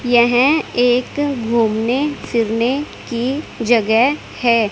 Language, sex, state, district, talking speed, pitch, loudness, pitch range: Hindi, female, Haryana, Charkhi Dadri, 90 wpm, 245 Hz, -17 LUFS, 230-270 Hz